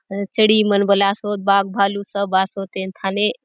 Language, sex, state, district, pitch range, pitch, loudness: Halbi, female, Chhattisgarh, Bastar, 195-205 Hz, 200 Hz, -18 LUFS